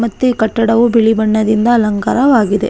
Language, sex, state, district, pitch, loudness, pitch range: Kannada, female, Karnataka, Raichur, 225 Hz, -12 LUFS, 215-235 Hz